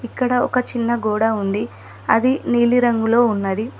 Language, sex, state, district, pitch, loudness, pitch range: Telugu, female, Telangana, Mahabubabad, 235 Hz, -18 LUFS, 215-245 Hz